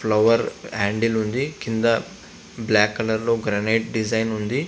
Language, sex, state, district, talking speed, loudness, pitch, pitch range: Telugu, male, Andhra Pradesh, Visakhapatnam, 130 wpm, -22 LUFS, 110 Hz, 110-115 Hz